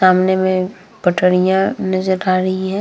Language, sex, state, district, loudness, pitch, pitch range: Hindi, female, Bihar, Vaishali, -16 LUFS, 185 Hz, 185-190 Hz